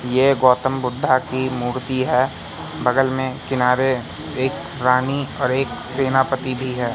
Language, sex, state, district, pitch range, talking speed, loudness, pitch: Hindi, male, Madhya Pradesh, Katni, 125-135 Hz, 140 wpm, -20 LUFS, 130 Hz